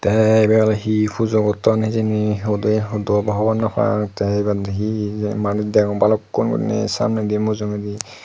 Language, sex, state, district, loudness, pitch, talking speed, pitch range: Chakma, male, Tripura, Unakoti, -19 LUFS, 105 Hz, 160 wpm, 105-110 Hz